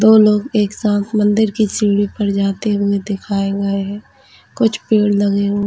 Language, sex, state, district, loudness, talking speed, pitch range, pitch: Hindi, female, Chhattisgarh, Bilaspur, -16 LUFS, 180 wpm, 200-215 Hz, 205 Hz